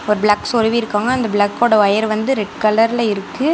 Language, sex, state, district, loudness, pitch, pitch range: Tamil, female, Tamil Nadu, Namakkal, -16 LUFS, 220 Hz, 210-235 Hz